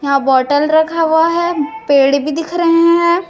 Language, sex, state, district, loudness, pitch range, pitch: Hindi, female, Chhattisgarh, Raipur, -13 LUFS, 285-335 Hz, 315 Hz